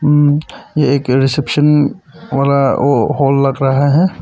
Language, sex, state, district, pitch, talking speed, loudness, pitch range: Hindi, male, Arunachal Pradesh, Papum Pare, 140 Hz, 130 wpm, -13 LUFS, 135-150 Hz